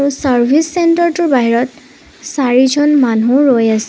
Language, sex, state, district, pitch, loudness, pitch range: Assamese, female, Assam, Sonitpur, 270 Hz, -12 LUFS, 245-295 Hz